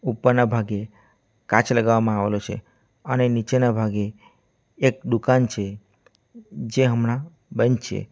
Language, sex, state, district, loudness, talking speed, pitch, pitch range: Gujarati, male, Gujarat, Valsad, -22 LUFS, 120 wpm, 115 Hz, 110-125 Hz